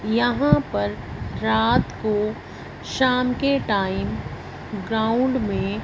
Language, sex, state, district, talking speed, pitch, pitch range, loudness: Hindi, female, Punjab, Fazilka, 95 wpm, 215 Hz, 190-250 Hz, -22 LUFS